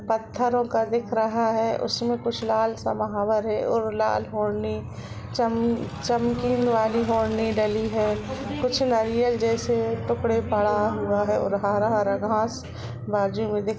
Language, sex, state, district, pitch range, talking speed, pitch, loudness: Hindi, female, Uttar Pradesh, Budaun, 205-230 Hz, 150 wpm, 220 Hz, -24 LUFS